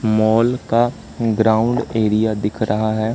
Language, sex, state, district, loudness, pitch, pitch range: Hindi, male, Madhya Pradesh, Katni, -18 LUFS, 110 Hz, 110-115 Hz